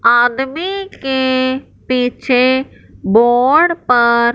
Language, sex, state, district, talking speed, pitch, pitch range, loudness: Hindi, male, Punjab, Fazilka, 70 wpm, 255 Hz, 240-265 Hz, -14 LUFS